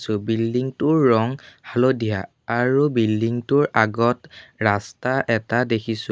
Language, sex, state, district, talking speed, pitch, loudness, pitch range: Assamese, male, Assam, Sonitpur, 120 wpm, 115 Hz, -21 LUFS, 110-130 Hz